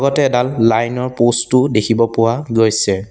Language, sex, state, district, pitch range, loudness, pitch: Assamese, male, Assam, Sonitpur, 115-130 Hz, -15 LUFS, 120 Hz